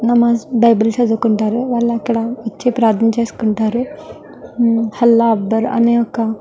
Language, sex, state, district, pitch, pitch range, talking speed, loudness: Telugu, female, Andhra Pradesh, Guntur, 230 Hz, 225-235 Hz, 130 wpm, -15 LUFS